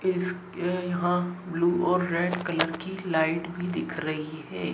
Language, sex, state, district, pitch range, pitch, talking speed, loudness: Hindi, female, Madhya Pradesh, Dhar, 165-180 Hz, 175 Hz, 150 wpm, -28 LUFS